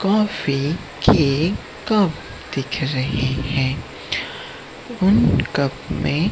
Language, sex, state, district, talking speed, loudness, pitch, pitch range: Hindi, male, Gujarat, Gandhinagar, 85 wpm, -20 LUFS, 145 Hz, 135-205 Hz